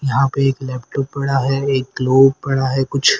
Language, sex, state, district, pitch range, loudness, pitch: Hindi, female, Haryana, Rohtak, 130-135 Hz, -17 LUFS, 135 Hz